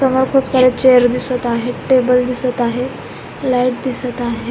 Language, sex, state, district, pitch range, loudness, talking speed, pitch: Marathi, female, Maharashtra, Pune, 245-260 Hz, -15 LUFS, 160 wpm, 250 Hz